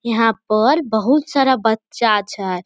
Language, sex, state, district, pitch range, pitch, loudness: Maithili, female, Bihar, Samastipur, 215-260 Hz, 225 Hz, -17 LUFS